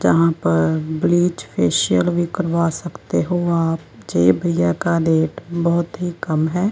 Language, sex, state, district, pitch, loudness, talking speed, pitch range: Hindi, male, Punjab, Kapurthala, 165 Hz, -19 LUFS, 115 wpm, 115-175 Hz